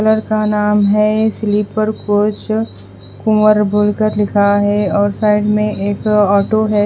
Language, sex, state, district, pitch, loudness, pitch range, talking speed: Hindi, female, Bihar, West Champaran, 210 Hz, -14 LUFS, 205-215 Hz, 150 wpm